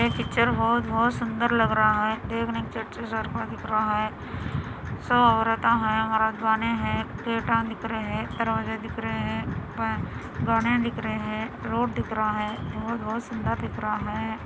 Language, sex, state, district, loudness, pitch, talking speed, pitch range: Hindi, female, Andhra Pradesh, Anantapur, -26 LUFS, 220 Hz, 165 wpm, 215-230 Hz